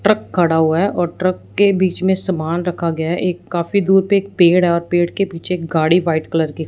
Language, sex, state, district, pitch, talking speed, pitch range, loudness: Hindi, male, Punjab, Fazilka, 175 Hz, 240 wpm, 165-190 Hz, -17 LUFS